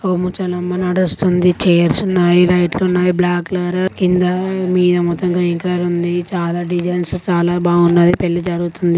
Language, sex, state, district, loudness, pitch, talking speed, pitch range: Telugu, female, Telangana, Karimnagar, -15 LUFS, 180 Hz, 140 wpm, 175-180 Hz